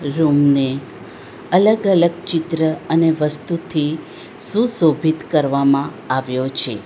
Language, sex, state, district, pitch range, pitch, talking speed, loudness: Gujarati, female, Gujarat, Valsad, 140-165 Hz, 155 Hz, 85 wpm, -17 LUFS